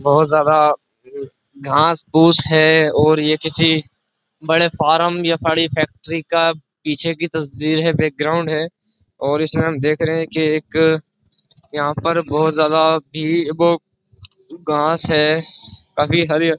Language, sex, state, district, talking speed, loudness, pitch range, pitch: Hindi, male, Uttar Pradesh, Jyotiba Phule Nagar, 135 wpm, -16 LUFS, 150-165 Hz, 160 Hz